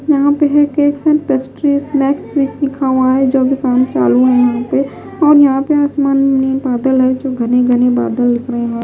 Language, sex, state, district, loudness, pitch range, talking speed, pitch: Hindi, female, Himachal Pradesh, Shimla, -13 LUFS, 250-285 Hz, 210 wpm, 270 Hz